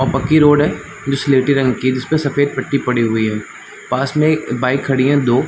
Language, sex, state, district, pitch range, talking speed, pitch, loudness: Hindi, male, Chhattisgarh, Balrampur, 125-140 Hz, 230 wpm, 135 Hz, -16 LUFS